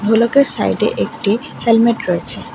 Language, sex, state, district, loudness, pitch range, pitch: Bengali, female, Tripura, West Tripura, -15 LUFS, 180-235 Hz, 225 Hz